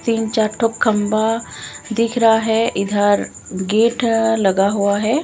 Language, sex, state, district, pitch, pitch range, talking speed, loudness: Hindi, female, Bihar, Katihar, 220 Hz, 205-230 Hz, 135 wpm, -17 LUFS